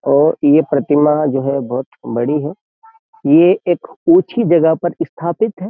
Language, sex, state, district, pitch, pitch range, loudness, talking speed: Hindi, male, Uttar Pradesh, Jyotiba Phule Nagar, 160 Hz, 145-220 Hz, -15 LUFS, 160 wpm